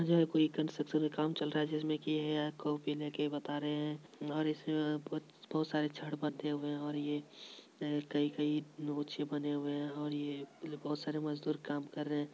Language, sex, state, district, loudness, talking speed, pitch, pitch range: Hindi, male, Bihar, Supaul, -37 LUFS, 205 wpm, 150 Hz, 145-155 Hz